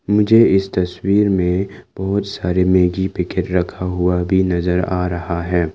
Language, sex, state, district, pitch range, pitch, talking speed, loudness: Hindi, male, Arunachal Pradesh, Lower Dibang Valley, 90-95 Hz, 90 Hz, 155 wpm, -17 LUFS